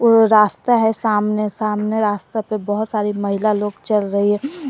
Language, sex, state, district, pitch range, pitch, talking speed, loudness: Hindi, female, Jharkhand, Garhwa, 205-220 Hz, 215 Hz, 180 wpm, -18 LUFS